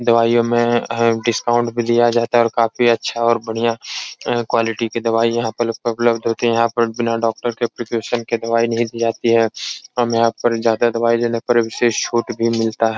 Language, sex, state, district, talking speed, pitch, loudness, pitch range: Hindi, male, Uttar Pradesh, Etah, 210 wpm, 115 Hz, -18 LUFS, 115-120 Hz